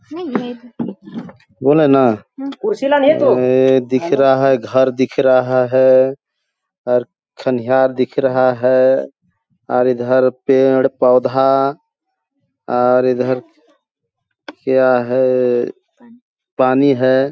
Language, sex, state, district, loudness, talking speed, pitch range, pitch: Hindi, male, Chhattisgarh, Balrampur, -14 LUFS, 90 wpm, 130-155 Hz, 130 Hz